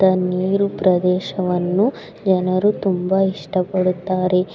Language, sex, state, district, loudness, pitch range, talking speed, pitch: Kannada, female, Karnataka, Raichur, -19 LUFS, 180-190 Hz, 80 wpm, 185 Hz